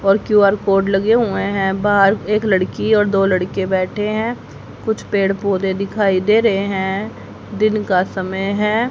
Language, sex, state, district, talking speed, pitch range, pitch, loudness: Hindi, female, Haryana, Rohtak, 170 wpm, 195-210 Hz, 200 Hz, -17 LUFS